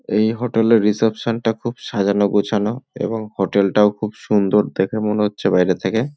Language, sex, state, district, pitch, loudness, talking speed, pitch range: Bengali, male, West Bengal, North 24 Parganas, 105 Hz, -18 LUFS, 175 wpm, 100-115 Hz